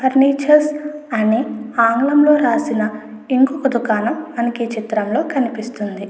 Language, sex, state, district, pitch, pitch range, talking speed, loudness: Telugu, female, Andhra Pradesh, Anantapur, 240 Hz, 225-290 Hz, 80 wpm, -17 LUFS